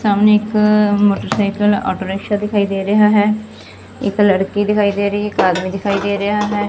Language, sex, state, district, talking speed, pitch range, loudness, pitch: Punjabi, female, Punjab, Fazilka, 180 wpm, 200-210 Hz, -15 LUFS, 205 Hz